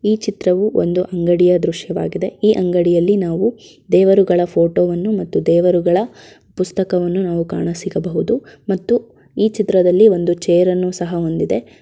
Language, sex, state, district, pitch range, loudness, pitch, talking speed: Kannada, female, Karnataka, Shimoga, 175-195 Hz, -16 LUFS, 180 Hz, 90 wpm